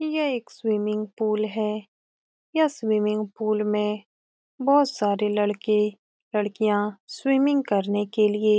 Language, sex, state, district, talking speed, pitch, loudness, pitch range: Hindi, female, Bihar, Saran, 125 wpm, 215 Hz, -24 LUFS, 210-235 Hz